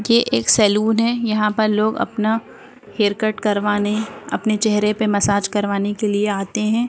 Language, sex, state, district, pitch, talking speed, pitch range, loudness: Hindi, female, Bihar, Jamui, 215 Hz, 175 wpm, 205-220 Hz, -18 LUFS